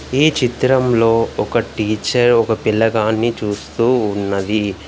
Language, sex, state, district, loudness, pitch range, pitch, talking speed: Telugu, male, Telangana, Komaram Bheem, -16 LUFS, 105-120 Hz, 115 Hz, 100 wpm